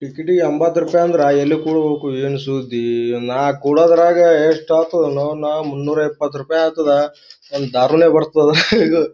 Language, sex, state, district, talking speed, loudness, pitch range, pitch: Kannada, male, Karnataka, Gulbarga, 145 wpm, -15 LUFS, 140-160 Hz, 150 Hz